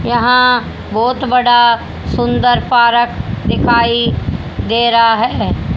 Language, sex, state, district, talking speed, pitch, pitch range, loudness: Hindi, female, Haryana, Charkhi Dadri, 95 wpm, 235 Hz, 230-240 Hz, -13 LUFS